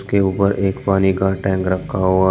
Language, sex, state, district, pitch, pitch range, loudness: Hindi, male, Uttar Pradesh, Shamli, 95 Hz, 95-100 Hz, -18 LUFS